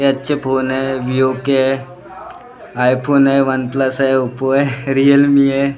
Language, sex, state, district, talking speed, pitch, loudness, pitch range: Hindi, male, Maharashtra, Gondia, 135 wpm, 135 Hz, -15 LUFS, 130-140 Hz